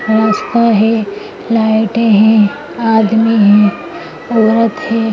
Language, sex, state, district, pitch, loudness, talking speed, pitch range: Bhojpuri, female, Uttar Pradesh, Gorakhpur, 220 Hz, -11 LUFS, 105 wpm, 215-230 Hz